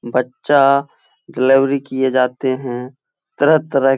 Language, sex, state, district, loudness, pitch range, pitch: Hindi, male, Uttar Pradesh, Etah, -16 LUFS, 130-140 Hz, 135 Hz